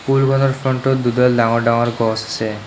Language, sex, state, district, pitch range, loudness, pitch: Assamese, male, Assam, Kamrup Metropolitan, 115-135 Hz, -16 LUFS, 120 Hz